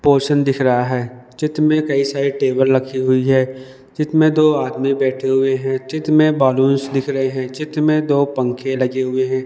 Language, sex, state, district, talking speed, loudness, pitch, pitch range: Hindi, male, Madhya Pradesh, Dhar, 205 wpm, -17 LUFS, 135 Hz, 130-145 Hz